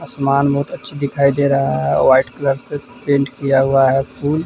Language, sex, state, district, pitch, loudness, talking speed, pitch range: Hindi, male, Bihar, Vaishali, 140 Hz, -16 LUFS, 215 wpm, 135-140 Hz